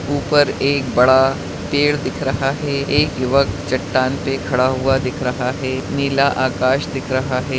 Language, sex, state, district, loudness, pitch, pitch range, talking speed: Hindi, male, Bihar, Madhepura, -18 LUFS, 135 Hz, 130-140 Hz, 165 wpm